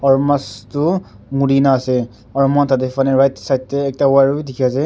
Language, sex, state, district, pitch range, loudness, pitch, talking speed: Nagamese, male, Nagaland, Dimapur, 130-140 Hz, -16 LUFS, 135 Hz, 235 wpm